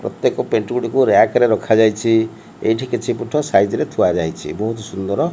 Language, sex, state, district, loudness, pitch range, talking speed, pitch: Odia, male, Odisha, Malkangiri, -17 LUFS, 110-115 Hz, 180 wpm, 110 Hz